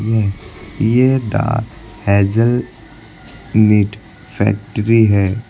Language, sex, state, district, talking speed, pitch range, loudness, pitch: Hindi, male, Uttar Pradesh, Lucknow, 75 wpm, 105-115 Hz, -15 LUFS, 110 Hz